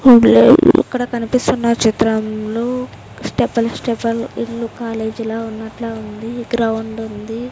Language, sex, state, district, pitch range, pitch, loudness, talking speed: Telugu, female, Andhra Pradesh, Sri Satya Sai, 225-240 Hz, 230 Hz, -16 LUFS, 95 wpm